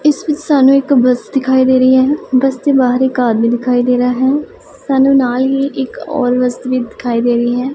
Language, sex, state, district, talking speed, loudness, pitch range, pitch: Punjabi, female, Punjab, Pathankot, 225 wpm, -13 LUFS, 250-270 Hz, 260 Hz